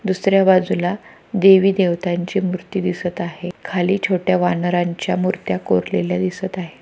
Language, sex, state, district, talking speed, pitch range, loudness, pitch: Marathi, female, Maharashtra, Pune, 125 wpm, 175-190 Hz, -18 LUFS, 180 Hz